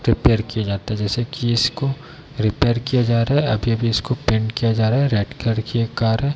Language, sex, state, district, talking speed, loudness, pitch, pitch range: Hindi, male, Bihar, Darbhanga, 255 wpm, -20 LUFS, 115 Hz, 110-125 Hz